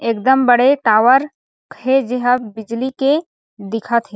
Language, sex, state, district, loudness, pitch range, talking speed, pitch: Chhattisgarhi, female, Chhattisgarh, Sarguja, -15 LUFS, 225-265 Hz, 130 wpm, 245 Hz